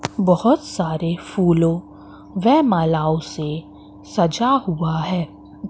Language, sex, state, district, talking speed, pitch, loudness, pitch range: Hindi, female, Madhya Pradesh, Katni, 95 wpm, 165 Hz, -19 LUFS, 155-195 Hz